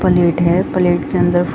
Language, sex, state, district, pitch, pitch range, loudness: Hindi, female, Jharkhand, Sahebganj, 175 Hz, 170-175 Hz, -15 LUFS